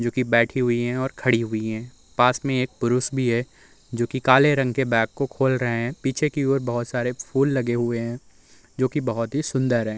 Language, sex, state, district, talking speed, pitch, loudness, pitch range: Hindi, male, Uttar Pradesh, Muzaffarnagar, 240 wpm, 125 Hz, -23 LUFS, 120-130 Hz